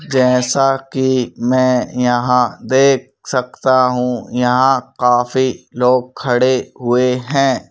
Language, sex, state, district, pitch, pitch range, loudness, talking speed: Hindi, male, Madhya Pradesh, Bhopal, 125 Hz, 125-130 Hz, -15 LUFS, 100 wpm